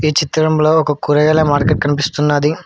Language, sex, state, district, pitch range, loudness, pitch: Telugu, male, Telangana, Hyderabad, 145-155 Hz, -14 LUFS, 150 Hz